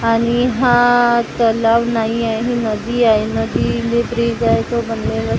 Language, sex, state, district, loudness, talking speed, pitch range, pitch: Marathi, female, Maharashtra, Gondia, -16 LUFS, 145 wpm, 225-235 Hz, 235 Hz